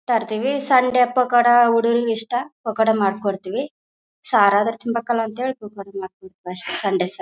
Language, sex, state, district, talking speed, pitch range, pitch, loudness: Kannada, female, Karnataka, Bellary, 150 wpm, 200-245 Hz, 230 Hz, -19 LUFS